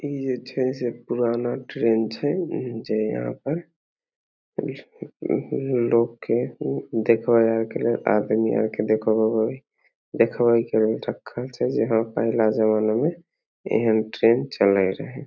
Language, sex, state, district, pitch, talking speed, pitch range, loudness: Maithili, male, Bihar, Samastipur, 115 Hz, 140 wpm, 110-125 Hz, -23 LUFS